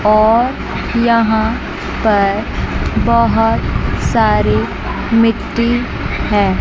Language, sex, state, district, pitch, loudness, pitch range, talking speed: Hindi, female, Chandigarh, Chandigarh, 225 Hz, -15 LUFS, 215-235 Hz, 65 wpm